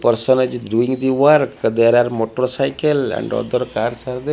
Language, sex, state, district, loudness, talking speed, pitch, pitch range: English, male, Odisha, Malkangiri, -17 LUFS, 165 wpm, 125 Hz, 120-135 Hz